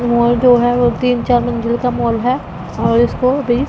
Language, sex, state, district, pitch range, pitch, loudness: Hindi, female, Punjab, Pathankot, 235-250 Hz, 240 Hz, -14 LUFS